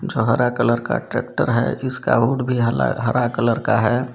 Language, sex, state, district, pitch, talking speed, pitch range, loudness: Hindi, male, Jharkhand, Garhwa, 120 Hz, 190 wpm, 115-125 Hz, -19 LUFS